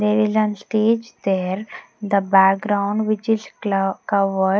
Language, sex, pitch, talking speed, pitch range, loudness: English, female, 205 Hz, 145 wpm, 195-215 Hz, -20 LUFS